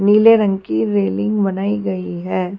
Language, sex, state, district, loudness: Hindi, female, Haryana, Jhajjar, -17 LUFS